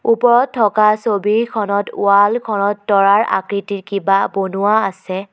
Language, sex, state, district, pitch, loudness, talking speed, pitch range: Assamese, female, Assam, Kamrup Metropolitan, 205 Hz, -15 LUFS, 100 wpm, 195-215 Hz